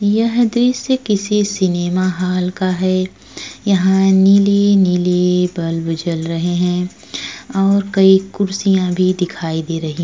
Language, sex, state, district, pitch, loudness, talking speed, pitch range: Hindi, female, Uttar Pradesh, Etah, 185 Hz, -16 LUFS, 125 wpm, 180-200 Hz